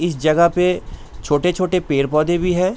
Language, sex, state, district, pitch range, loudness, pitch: Hindi, male, Bihar, Saharsa, 155-180 Hz, -18 LUFS, 175 Hz